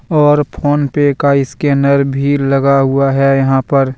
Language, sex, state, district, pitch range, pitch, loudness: Hindi, male, Jharkhand, Deoghar, 135-145 Hz, 140 Hz, -12 LUFS